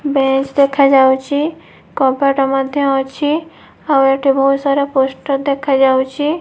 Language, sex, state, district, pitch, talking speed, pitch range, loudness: Odia, female, Odisha, Nuapada, 275 Hz, 110 wpm, 270-285 Hz, -14 LUFS